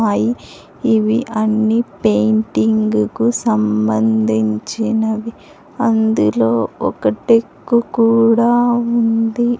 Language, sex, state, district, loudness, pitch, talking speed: Telugu, female, Andhra Pradesh, Sri Satya Sai, -15 LUFS, 220 Hz, 55 wpm